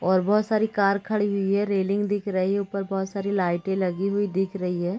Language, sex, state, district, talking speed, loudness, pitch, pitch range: Hindi, female, Uttar Pradesh, Gorakhpur, 240 wpm, -24 LUFS, 195 Hz, 190-205 Hz